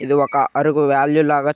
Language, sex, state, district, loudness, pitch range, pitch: Telugu, male, Andhra Pradesh, Krishna, -16 LUFS, 140-150 Hz, 145 Hz